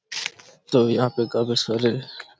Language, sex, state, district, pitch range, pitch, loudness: Hindi, male, Chhattisgarh, Raigarh, 115-135 Hz, 120 Hz, -23 LUFS